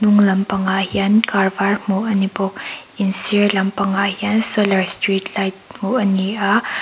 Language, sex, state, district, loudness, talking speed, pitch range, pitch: Mizo, female, Mizoram, Aizawl, -17 LUFS, 175 wpm, 195-205 Hz, 200 Hz